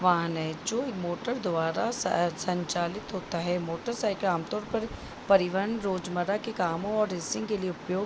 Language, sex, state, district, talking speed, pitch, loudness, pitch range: Hindi, female, Jharkhand, Jamtara, 165 wpm, 185 Hz, -30 LUFS, 175-210 Hz